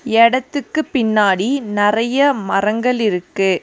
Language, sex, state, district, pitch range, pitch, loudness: Tamil, female, Tamil Nadu, Nilgiris, 205-255 Hz, 225 Hz, -16 LUFS